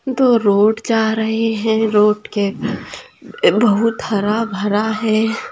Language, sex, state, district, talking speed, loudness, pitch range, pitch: Hindi, female, Bihar, Sitamarhi, 120 wpm, -16 LUFS, 210-225 Hz, 220 Hz